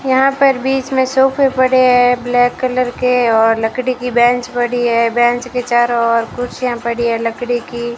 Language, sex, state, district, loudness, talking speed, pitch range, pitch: Hindi, female, Rajasthan, Bikaner, -14 LUFS, 190 wpm, 240-255 Hz, 245 Hz